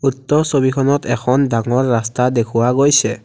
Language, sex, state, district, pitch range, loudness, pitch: Assamese, male, Assam, Kamrup Metropolitan, 120-135 Hz, -15 LUFS, 125 Hz